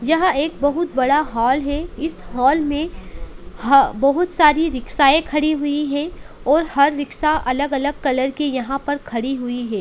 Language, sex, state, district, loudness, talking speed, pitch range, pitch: Hindi, female, Bihar, Gopalganj, -18 LUFS, 165 wpm, 270-305 Hz, 285 Hz